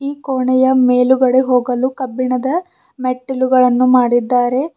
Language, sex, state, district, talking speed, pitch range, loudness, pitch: Kannada, female, Karnataka, Bidar, 90 wpm, 250-260 Hz, -14 LUFS, 255 Hz